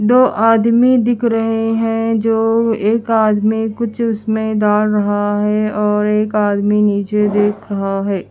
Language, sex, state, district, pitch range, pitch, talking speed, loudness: Hindi, female, Haryana, Charkhi Dadri, 210-225 Hz, 215 Hz, 145 wpm, -15 LUFS